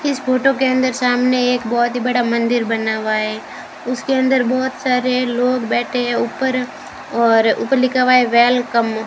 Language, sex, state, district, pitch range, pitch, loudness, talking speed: Hindi, female, Rajasthan, Bikaner, 235-255 Hz, 250 Hz, -16 LUFS, 185 wpm